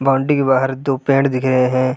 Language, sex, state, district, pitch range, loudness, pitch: Hindi, male, Bihar, Sitamarhi, 130-135 Hz, -16 LUFS, 135 Hz